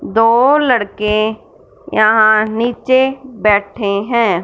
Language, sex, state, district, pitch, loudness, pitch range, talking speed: Hindi, female, Punjab, Fazilka, 220 Hz, -13 LUFS, 215-245 Hz, 80 wpm